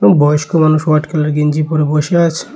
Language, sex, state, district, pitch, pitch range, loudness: Bengali, male, Tripura, West Tripura, 155 Hz, 150-160 Hz, -13 LUFS